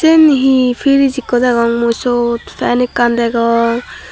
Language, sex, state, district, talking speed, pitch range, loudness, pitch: Chakma, female, Tripura, Dhalai, 145 wpm, 235-265 Hz, -13 LUFS, 245 Hz